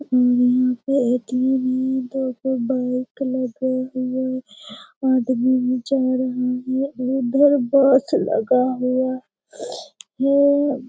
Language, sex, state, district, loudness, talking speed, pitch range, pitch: Hindi, female, Bihar, Lakhisarai, -20 LUFS, 115 wpm, 255-265 Hz, 255 Hz